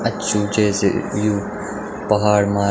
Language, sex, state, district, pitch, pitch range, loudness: Garhwali, male, Uttarakhand, Tehri Garhwal, 105 Hz, 100-105 Hz, -19 LUFS